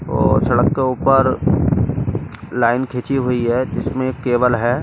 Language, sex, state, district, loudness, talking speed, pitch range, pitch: Hindi, male, Delhi, New Delhi, -17 LUFS, 150 wpm, 120-130 Hz, 125 Hz